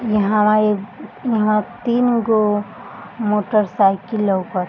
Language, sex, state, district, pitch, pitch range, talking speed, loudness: Bhojpuri, female, Bihar, Gopalganj, 215 Hz, 205-225 Hz, 90 wpm, -18 LUFS